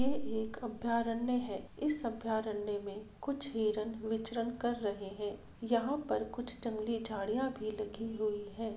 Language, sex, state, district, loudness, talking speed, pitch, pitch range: Hindi, female, Bihar, Gopalganj, -37 LUFS, 150 wpm, 225 Hz, 215-240 Hz